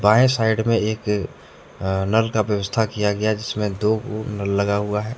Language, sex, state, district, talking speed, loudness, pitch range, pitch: Hindi, male, Jharkhand, Deoghar, 210 wpm, -21 LUFS, 105-110 Hz, 105 Hz